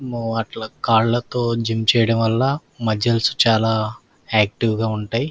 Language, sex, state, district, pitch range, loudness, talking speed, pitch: Telugu, male, Andhra Pradesh, Krishna, 110-120 Hz, -19 LUFS, 115 wpm, 115 Hz